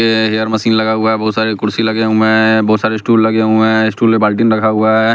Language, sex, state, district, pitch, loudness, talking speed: Hindi, male, Bihar, West Champaran, 110 Hz, -12 LUFS, 280 wpm